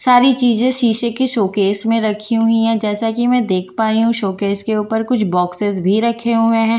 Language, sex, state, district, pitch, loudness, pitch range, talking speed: Hindi, female, Bihar, Katihar, 225 Hz, -15 LUFS, 205-235 Hz, 230 wpm